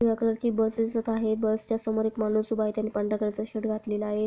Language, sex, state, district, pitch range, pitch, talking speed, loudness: Marathi, female, Maharashtra, Pune, 215-225 Hz, 220 Hz, 265 wpm, -28 LUFS